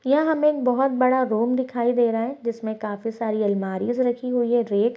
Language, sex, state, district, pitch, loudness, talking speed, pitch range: Hindi, female, Bihar, Muzaffarpur, 240 Hz, -22 LUFS, 230 wpm, 225-255 Hz